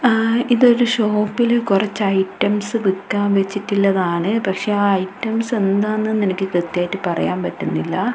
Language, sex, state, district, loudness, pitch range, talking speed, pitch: Malayalam, female, Kerala, Kasaragod, -18 LUFS, 190-225 Hz, 110 wpm, 205 Hz